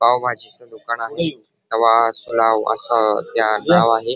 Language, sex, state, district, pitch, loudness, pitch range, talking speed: Marathi, male, Maharashtra, Dhule, 115 Hz, -17 LUFS, 110-120 Hz, 100 wpm